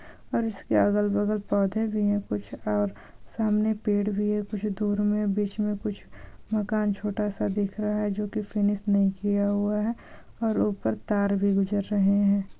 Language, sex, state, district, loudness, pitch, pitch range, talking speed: Hindi, female, Bihar, Saran, -27 LUFS, 205 Hz, 200-210 Hz, 185 wpm